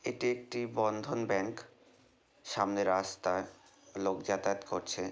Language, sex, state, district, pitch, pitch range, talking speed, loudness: Bengali, male, West Bengal, North 24 Parganas, 100 Hz, 95-110 Hz, 105 wpm, -34 LUFS